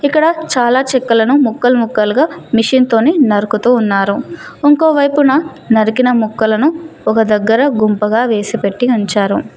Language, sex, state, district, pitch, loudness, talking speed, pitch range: Telugu, female, Telangana, Mahabubabad, 245 Hz, -12 LUFS, 120 wpm, 220-285 Hz